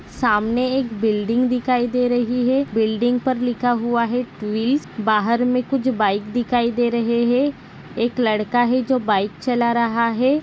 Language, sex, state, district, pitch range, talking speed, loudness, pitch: Hindi, female, Maharashtra, Nagpur, 230-250 Hz, 165 wpm, -20 LUFS, 240 Hz